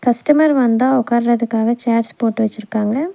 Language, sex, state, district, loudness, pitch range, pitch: Tamil, female, Tamil Nadu, Nilgiris, -16 LUFS, 225-250 Hz, 235 Hz